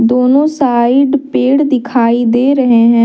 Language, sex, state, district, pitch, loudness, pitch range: Hindi, female, Jharkhand, Deoghar, 250 Hz, -11 LUFS, 235-275 Hz